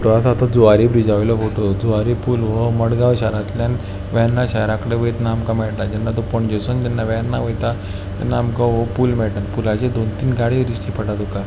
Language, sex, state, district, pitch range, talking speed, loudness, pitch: Konkani, male, Goa, North and South Goa, 110-120 Hz, 180 wpm, -18 LUFS, 115 Hz